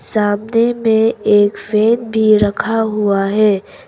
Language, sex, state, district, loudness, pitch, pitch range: Hindi, female, Arunachal Pradesh, Papum Pare, -14 LUFS, 215 Hz, 205-225 Hz